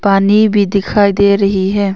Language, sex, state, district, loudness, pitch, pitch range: Hindi, female, Arunachal Pradesh, Longding, -12 LUFS, 200 Hz, 195-205 Hz